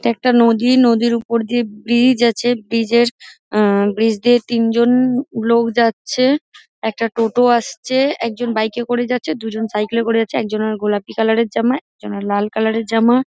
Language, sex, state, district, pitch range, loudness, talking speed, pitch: Bengali, female, West Bengal, Dakshin Dinajpur, 225-245 Hz, -16 LUFS, 165 wpm, 235 Hz